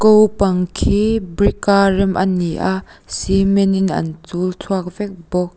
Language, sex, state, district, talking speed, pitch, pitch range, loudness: Mizo, female, Mizoram, Aizawl, 160 wpm, 190 Hz, 180-200 Hz, -17 LUFS